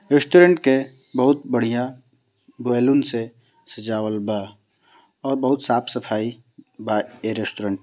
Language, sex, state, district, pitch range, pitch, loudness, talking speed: Bhojpuri, male, Bihar, Gopalganj, 110-135 Hz, 120 Hz, -21 LUFS, 120 wpm